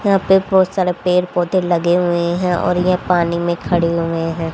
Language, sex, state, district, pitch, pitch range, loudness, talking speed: Hindi, female, Haryana, Rohtak, 175 Hz, 170-185 Hz, -16 LUFS, 210 wpm